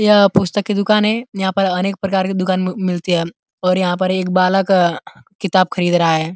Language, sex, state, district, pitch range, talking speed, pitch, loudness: Hindi, male, Uttar Pradesh, Ghazipur, 180-195 Hz, 205 wpm, 185 Hz, -16 LUFS